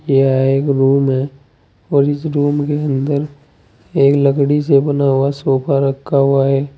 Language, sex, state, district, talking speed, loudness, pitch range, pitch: Hindi, male, Uttar Pradesh, Saharanpur, 150 wpm, -15 LUFS, 135-145 Hz, 140 Hz